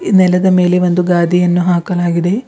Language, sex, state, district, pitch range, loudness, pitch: Kannada, female, Karnataka, Bidar, 175-180 Hz, -12 LUFS, 180 Hz